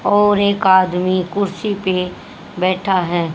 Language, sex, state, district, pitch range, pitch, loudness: Hindi, female, Haryana, Jhajjar, 180-200 Hz, 185 Hz, -16 LUFS